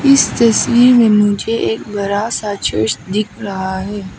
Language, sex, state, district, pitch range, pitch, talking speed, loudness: Hindi, female, Arunachal Pradesh, Papum Pare, 190-230 Hz, 205 Hz, 160 wpm, -14 LUFS